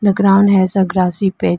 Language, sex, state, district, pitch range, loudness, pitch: English, female, Arunachal Pradesh, Lower Dibang Valley, 185-195 Hz, -13 LUFS, 190 Hz